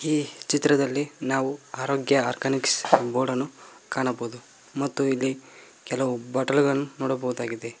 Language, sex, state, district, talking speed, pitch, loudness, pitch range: Kannada, male, Karnataka, Koppal, 90 wpm, 135 Hz, -25 LUFS, 130-140 Hz